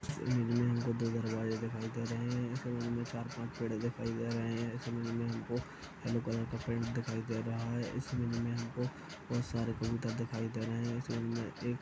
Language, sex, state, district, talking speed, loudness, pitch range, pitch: Hindi, male, Chhattisgarh, Kabirdham, 205 wpm, -37 LUFS, 115-120 Hz, 115 Hz